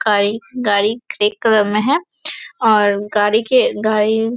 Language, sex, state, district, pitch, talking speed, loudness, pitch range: Hindi, female, Chhattisgarh, Bastar, 215 Hz, 135 wpm, -16 LUFS, 210-235 Hz